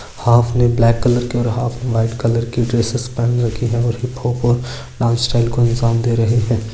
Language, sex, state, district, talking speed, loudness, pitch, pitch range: Marwari, male, Rajasthan, Churu, 225 wpm, -17 LUFS, 120 Hz, 115-120 Hz